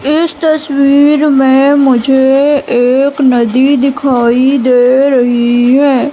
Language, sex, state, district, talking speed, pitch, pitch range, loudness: Hindi, female, Madhya Pradesh, Katni, 100 wpm, 270 Hz, 255-285 Hz, -9 LUFS